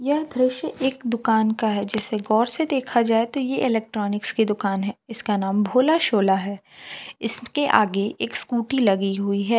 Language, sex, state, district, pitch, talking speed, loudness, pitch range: Hindi, female, Jharkhand, Palamu, 225 Hz, 180 wpm, -22 LUFS, 205-255 Hz